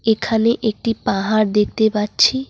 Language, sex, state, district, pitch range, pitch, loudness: Bengali, female, West Bengal, Cooch Behar, 210-230 Hz, 220 Hz, -18 LUFS